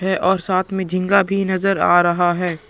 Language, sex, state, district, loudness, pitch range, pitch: Hindi, male, Chhattisgarh, Sukma, -17 LUFS, 180-195 Hz, 190 Hz